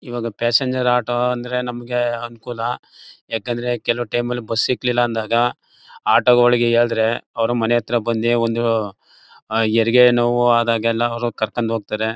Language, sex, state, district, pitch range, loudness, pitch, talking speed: Kannada, male, Karnataka, Mysore, 115-120 Hz, -19 LUFS, 120 Hz, 125 wpm